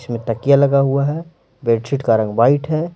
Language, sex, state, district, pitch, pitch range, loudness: Hindi, male, Bihar, Patna, 140 Hz, 115-145 Hz, -17 LUFS